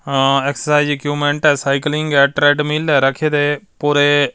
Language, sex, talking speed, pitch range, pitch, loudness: Punjabi, male, 180 wpm, 140-150 Hz, 145 Hz, -15 LUFS